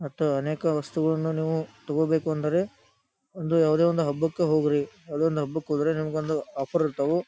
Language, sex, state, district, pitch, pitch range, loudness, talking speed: Kannada, male, Karnataka, Dharwad, 160 Hz, 150-160 Hz, -26 LUFS, 155 wpm